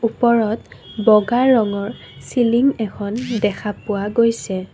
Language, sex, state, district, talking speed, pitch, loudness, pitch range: Assamese, female, Assam, Kamrup Metropolitan, 100 wpm, 220 Hz, -18 LUFS, 205-235 Hz